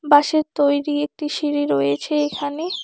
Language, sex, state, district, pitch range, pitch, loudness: Bengali, female, West Bengal, Alipurduar, 285-300 Hz, 295 Hz, -20 LUFS